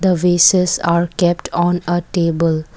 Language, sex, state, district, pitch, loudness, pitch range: English, female, Assam, Kamrup Metropolitan, 175 Hz, -15 LUFS, 170-175 Hz